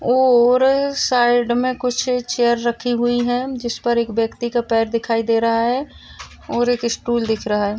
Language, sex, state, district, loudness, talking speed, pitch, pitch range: Hindi, female, Maharashtra, Solapur, -18 LUFS, 175 wpm, 240 Hz, 230-250 Hz